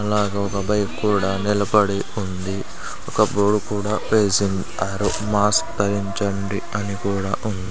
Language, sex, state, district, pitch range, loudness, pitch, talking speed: Telugu, male, Andhra Pradesh, Sri Satya Sai, 100-105 Hz, -21 LUFS, 100 Hz, 115 wpm